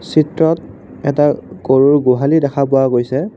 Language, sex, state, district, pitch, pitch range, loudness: Assamese, male, Assam, Kamrup Metropolitan, 140 Hz, 135-155 Hz, -14 LUFS